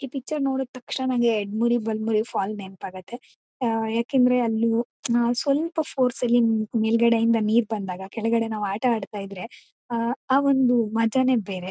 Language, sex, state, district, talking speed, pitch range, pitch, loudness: Kannada, female, Karnataka, Mysore, 130 wpm, 220-255 Hz, 235 Hz, -24 LUFS